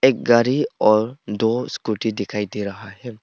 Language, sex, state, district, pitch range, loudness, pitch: Hindi, male, Arunachal Pradesh, Papum Pare, 105-120 Hz, -20 LUFS, 110 Hz